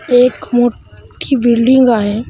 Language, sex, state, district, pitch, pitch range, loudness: Marathi, female, Maharashtra, Washim, 240 Hz, 230-255 Hz, -12 LUFS